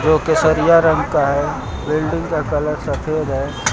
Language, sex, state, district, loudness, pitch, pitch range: Hindi, male, Uttar Pradesh, Lucknow, -17 LUFS, 155 Hz, 145-160 Hz